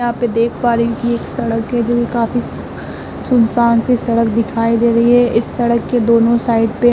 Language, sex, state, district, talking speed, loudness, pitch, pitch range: Hindi, female, Uttar Pradesh, Muzaffarnagar, 215 wpm, -14 LUFS, 235 Hz, 230-240 Hz